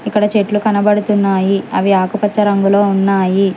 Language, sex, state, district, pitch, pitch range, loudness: Telugu, male, Telangana, Hyderabad, 200 Hz, 195-210 Hz, -13 LUFS